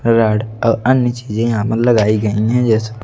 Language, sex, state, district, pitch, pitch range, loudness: Hindi, male, Delhi, New Delhi, 115 Hz, 110-120 Hz, -15 LUFS